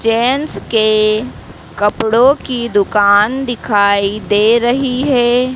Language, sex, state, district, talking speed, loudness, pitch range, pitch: Hindi, female, Madhya Pradesh, Dhar, 95 wpm, -13 LUFS, 205-250 Hz, 225 Hz